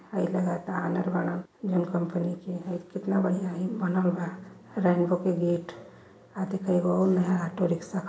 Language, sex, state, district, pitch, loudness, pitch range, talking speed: Hindi, male, Uttar Pradesh, Varanasi, 180 Hz, -28 LUFS, 175-190 Hz, 180 wpm